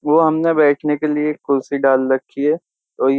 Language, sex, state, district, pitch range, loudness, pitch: Hindi, male, Uttar Pradesh, Jyotiba Phule Nagar, 135-155 Hz, -17 LUFS, 150 Hz